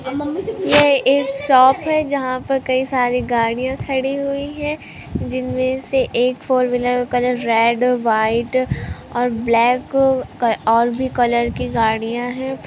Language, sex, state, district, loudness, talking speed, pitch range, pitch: Hindi, female, Andhra Pradesh, Chittoor, -18 LUFS, 140 wpm, 240-270 Hz, 255 Hz